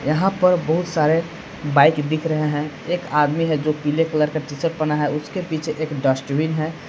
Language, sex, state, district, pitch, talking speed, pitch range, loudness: Hindi, male, Jharkhand, Palamu, 155 Hz, 210 wpm, 150-165 Hz, -20 LUFS